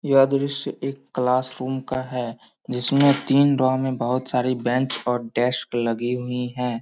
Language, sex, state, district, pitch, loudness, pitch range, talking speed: Hindi, male, Bihar, Samastipur, 130 Hz, -23 LUFS, 125-135 Hz, 160 wpm